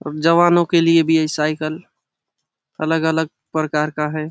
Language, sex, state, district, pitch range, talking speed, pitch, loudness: Hindi, male, Chhattisgarh, Bastar, 155-165 Hz, 165 wpm, 155 Hz, -18 LUFS